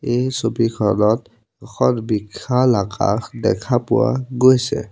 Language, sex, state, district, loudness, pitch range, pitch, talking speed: Assamese, male, Assam, Sonitpur, -18 LUFS, 110-130 Hz, 120 Hz, 95 wpm